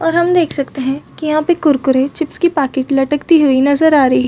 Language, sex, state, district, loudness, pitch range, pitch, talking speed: Hindi, female, Chhattisgarh, Bastar, -14 LUFS, 270-320 Hz, 290 Hz, 250 wpm